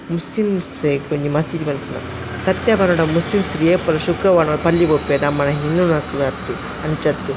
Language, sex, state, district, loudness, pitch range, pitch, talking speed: Tulu, male, Karnataka, Dakshina Kannada, -18 LUFS, 145-175 Hz, 160 Hz, 165 wpm